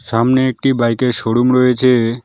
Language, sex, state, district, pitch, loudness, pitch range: Bengali, male, West Bengal, Alipurduar, 125 Hz, -14 LUFS, 120-130 Hz